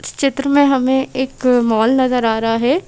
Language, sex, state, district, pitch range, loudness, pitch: Hindi, female, Madhya Pradesh, Bhopal, 240-275 Hz, -15 LUFS, 260 Hz